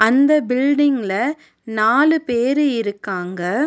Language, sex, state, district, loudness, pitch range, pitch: Tamil, female, Tamil Nadu, Nilgiris, -18 LUFS, 215-290 Hz, 255 Hz